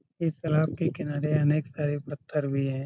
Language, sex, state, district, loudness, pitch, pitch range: Hindi, male, Bihar, Saran, -28 LUFS, 150 Hz, 140-155 Hz